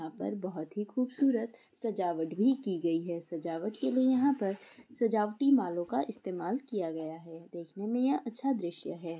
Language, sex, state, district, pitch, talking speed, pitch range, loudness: Hindi, female, Bihar, Purnia, 210 Hz, 185 wpm, 170-250 Hz, -32 LUFS